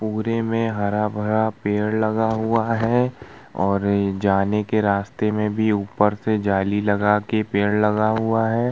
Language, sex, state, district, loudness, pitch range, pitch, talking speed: Hindi, male, Uttar Pradesh, Muzaffarnagar, -21 LUFS, 105-110 Hz, 105 Hz, 150 wpm